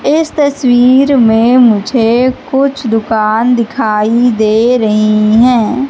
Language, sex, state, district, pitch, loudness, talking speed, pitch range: Hindi, female, Madhya Pradesh, Katni, 240 Hz, -10 LUFS, 100 wpm, 220-260 Hz